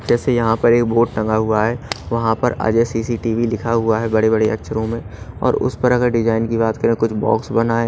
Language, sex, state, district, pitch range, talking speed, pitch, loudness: Hindi, male, Odisha, Nuapada, 110-115 Hz, 235 wpm, 115 Hz, -18 LUFS